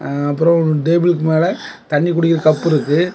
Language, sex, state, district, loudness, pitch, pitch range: Tamil, male, Tamil Nadu, Kanyakumari, -15 LUFS, 160 Hz, 155-170 Hz